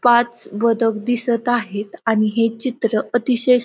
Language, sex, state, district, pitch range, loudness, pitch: Marathi, female, Maharashtra, Pune, 225-245 Hz, -19 LUFS, 230 Hz